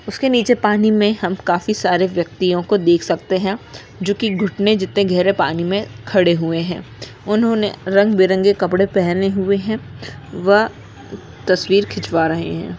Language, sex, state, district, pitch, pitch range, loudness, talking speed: Hindi, female, Maharashtra, Aurangabad, 190 Hz, 175-205 Hz, -17 LUFS, 150 wpm